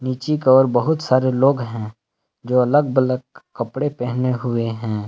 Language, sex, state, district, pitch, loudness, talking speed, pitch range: Hindi, male, Jharkhand, Palamu, 125 Hz, -19 LUFS, 165 wpm, 115-130 Hz